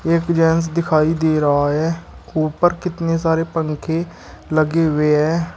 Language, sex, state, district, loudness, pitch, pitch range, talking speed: Hindi, male, Uttar Pradesh, Shamli, -18 LUFS, 160 Hz, 155-165 Hz, 140 wpm